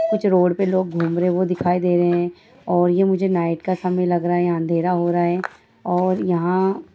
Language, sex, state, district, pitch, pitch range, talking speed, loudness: Hindi, female, Bihar, Bhagalpur, 180 Hz, 175-185 Hz, 250 wpm, -20 LUFS